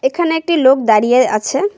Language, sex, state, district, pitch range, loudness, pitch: Bengali, female, West Bengal, Cooch Behar, 230-325 Hz, -13 LUFS, 265 Hz